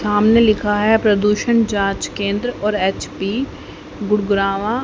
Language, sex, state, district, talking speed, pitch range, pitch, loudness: Hindi, female, Haryana, Rohtak, 110 wpm, 200-220 Hz, 210 Hz, -17 LUFS